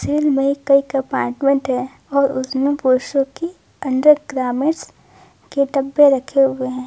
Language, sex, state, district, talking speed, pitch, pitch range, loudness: Hindi, female, Jharkhand, Ranchi, 140 wpm, 275 Hz, 260-280 Hz, -17 LUFS